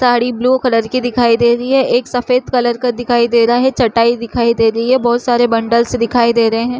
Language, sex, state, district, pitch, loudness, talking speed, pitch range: Chhattisgarhi, female, Chhattisgarh, Rajnandgaon, 240 Hz, -13 LUFS, 240 wpm, 235-250 Hz